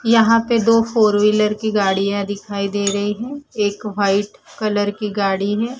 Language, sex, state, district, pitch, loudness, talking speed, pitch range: Hindi, female, Punjab, Fazilka, 210 Hz, -18 LUFS, 175 wpm, 200-225 Hz